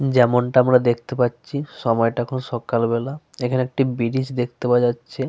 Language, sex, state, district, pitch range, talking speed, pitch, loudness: Bengali, male, Jharkhand, Sahebganj, 120-130 Hz, 145 wpm, 125 Hz, -20 LUFS